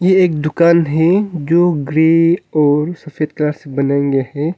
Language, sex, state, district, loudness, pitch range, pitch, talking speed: Hindi, male, Arunachal Pradesh, Longding, -14 LUFS, 150-170 Hz, 155 Hz, 155 wpm